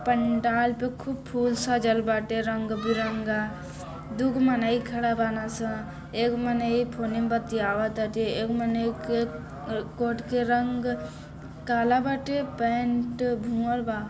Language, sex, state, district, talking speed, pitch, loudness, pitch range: Bhojpuri, female, Bihar, Saran, 130 wpm, 235 Hz, -27 LUFS, 225-240 Hz